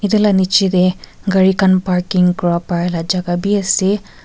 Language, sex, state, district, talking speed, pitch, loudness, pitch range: Nagamese, female, Nagaland, Kohima, 155 wpm, 185 Hz, -15 LUFS, 180-195 Hz